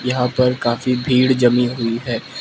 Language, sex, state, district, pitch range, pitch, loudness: Hindi, male, Manipur, Imphal West, 120-125 Hz, 125 Hz, -17 LUFS